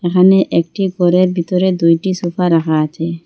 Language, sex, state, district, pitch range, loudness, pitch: Bengali, female, Assam, Hailakandi, 165-185 Hz, -14 LUFS, 175 Hz